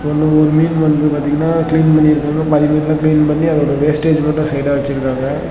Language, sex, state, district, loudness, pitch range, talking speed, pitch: Tamil, male, Tamil Nadu, Namakkal, -14 LUFS, 150-155 Hz, 185 wpm, 150 Hz